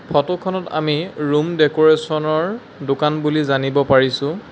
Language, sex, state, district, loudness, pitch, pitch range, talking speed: Assamese, male, Assam, Sonitpur, -18 LUFS, 155 Hz, 145-160 Hz, 135 wpm